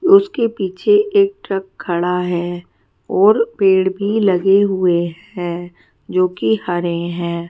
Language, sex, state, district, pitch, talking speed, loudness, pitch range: Hindi, female, Haryana, Charkhi Dadri, 190 Hz, 130 wpm, -17 LUFS, 175-205 Hz